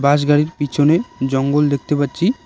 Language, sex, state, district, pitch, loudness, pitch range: Bengali, male, West Bengal, Cooch Behar, 145 Hz, -17 LUFS, 140-150 Hz